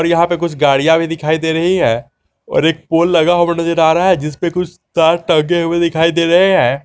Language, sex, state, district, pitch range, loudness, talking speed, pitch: Hindi, male, Jharkhand, Garhwa, 160-170 Hz, -13 LUFS, 255 wpm, 165 Hz